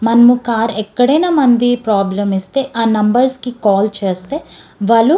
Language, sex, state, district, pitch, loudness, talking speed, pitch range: Telugu, female, Andhra Pradesh, Srikakulam, 230 Hz, -14 LUFS, 150 wpm, 210-245 Hz